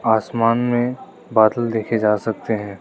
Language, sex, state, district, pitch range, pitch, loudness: Hindi, male, Arunachal Pradesh, Lower Dibang Valley, 110-120 Hz, 110 Hz, -19 LUFS